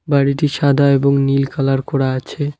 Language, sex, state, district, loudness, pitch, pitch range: Bengali, male, West Bengal, Alipurduar, -16 LUFS, 140 Hz, 135-145 Hz